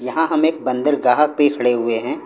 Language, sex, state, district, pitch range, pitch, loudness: Hindi, male, Punjab, Pathankot, 125-155 Hz, 145 Hz, -17 LUFS